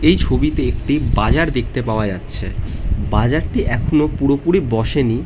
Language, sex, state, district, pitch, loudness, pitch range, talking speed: Bengali, male, West Bengal, North 24 Parganas, 115 Hz, -18 LUFS, 105-140 Hz, 125 wpm